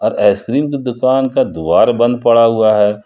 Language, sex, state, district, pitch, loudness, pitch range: Hindi, male, Jharkhand, Ranchi, 120 Hz, -13 LUFS, 110-130 Hz